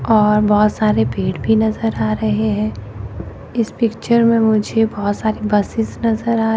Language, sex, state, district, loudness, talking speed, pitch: Hindi, female, Chandigarh, Chandigarh, -17 LUFS, 175 wpm, 210 Hz